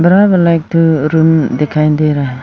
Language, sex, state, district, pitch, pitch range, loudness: Hindi, female, Arunachal Pradesh, Lower Dibang Valley, 160 Hz, 150-165 Hz, -11 LUFS